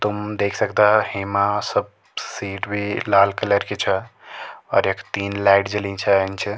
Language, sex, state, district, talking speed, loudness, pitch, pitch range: Garhwali, male, Uttarakhand, Tehri Garhwal, 165 wpm, -20 LUFS, 100 Hz, 100-105 Hz